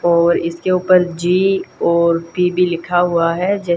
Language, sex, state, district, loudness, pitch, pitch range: Hindi, female, Haryana, Jhajjar, -16 LUFS, 175 Hz, 170-180 Hz